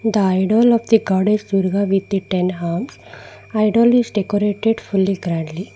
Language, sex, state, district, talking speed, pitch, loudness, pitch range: English, female, Karnataka, Bangalore, 155 wpm, 200 Hz, -17 LUFS, 190-220 Hz